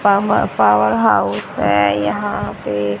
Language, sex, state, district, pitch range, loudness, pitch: Hindi, female, Haryana, Rohtak, 100-110 Hz, -16 LUFS, 105 Hz